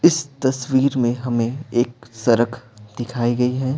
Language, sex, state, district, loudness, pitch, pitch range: Hindi, male, Bihar, Patna, -21 LUFS, 125 Hz, 120-130 Hz